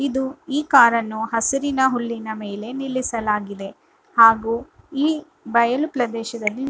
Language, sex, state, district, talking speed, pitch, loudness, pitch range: Kannada, female, Karnataka, Raichur, 100 wpm, 240 Hz, -20 LUFS, 225-275 Hz